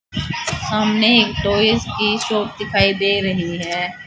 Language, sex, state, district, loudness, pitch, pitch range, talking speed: Hindi, female, Haryana, Charkhi Dadri, -17 LUFS, 210 Hz, 195-215 Hz, 135 wpm